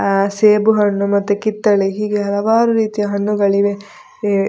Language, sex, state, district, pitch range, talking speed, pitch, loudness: Kannada, female, Karnataka, Dakshina Kannada, 200-210 Hz, 135 wpm, 205 Hz, -15 LUFS